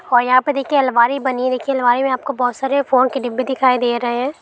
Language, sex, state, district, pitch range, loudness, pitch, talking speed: Hindi, female, Chhattisgarh, Balrampur, 245-270 Hz, -17 LUFS, 255 Hz, 260 wpm